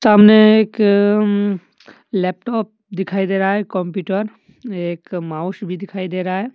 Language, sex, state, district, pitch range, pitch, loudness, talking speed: Hindi, male, Jharkhand, Deoghar, 185-210 Hz, 195 Hz, -17 LUFS, 145 wpm